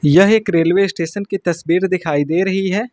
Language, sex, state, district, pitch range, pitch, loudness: Hindi, male, Uttar Pradesh, Lucknow, 170-195 Hz, 185 Hz, -16 LUFS